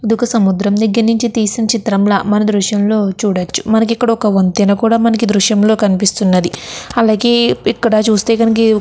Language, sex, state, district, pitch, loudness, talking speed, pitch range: Telugu, female, Andhra Pradesh, Chittoor, 215 Hz, -13 LUFS, 175 wpm, 205-230 Hz